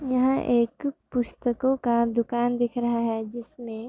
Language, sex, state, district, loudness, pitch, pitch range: Hindi, female, Bihar, Gopalganj, -25 LUFS, 240 Hz, 235-250 Hz